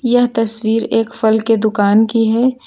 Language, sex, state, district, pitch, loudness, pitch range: Hindi, female, Uttar Pradesh, Lucknow, 225 Hz, -14 LUFS, 220-235 Hz